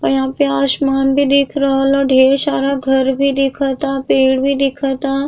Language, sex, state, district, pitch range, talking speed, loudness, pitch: Bhojpuri, female, Uttar Pradesh, Gorakhpur, 270-275 Hz, 180 wpm, -14 LUFS, 275 Hz